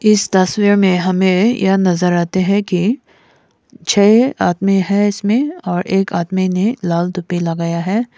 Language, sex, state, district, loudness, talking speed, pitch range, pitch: Hindi, female, Nagaland, Kohima, -15 LUFS, 155 wpm, 180-205 Hz, 190 Hz